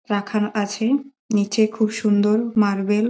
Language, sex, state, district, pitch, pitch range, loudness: Bengali, female, West Bengal, Malda, 215 Hz, 205-225 Hz, -20 LUFS